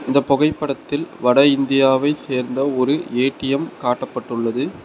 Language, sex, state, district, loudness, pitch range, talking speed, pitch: Tamil, male, Tamil Nadu, Nilgiris, -19 LUFS, 130-140 Hz, 100 wpm, 135 Hz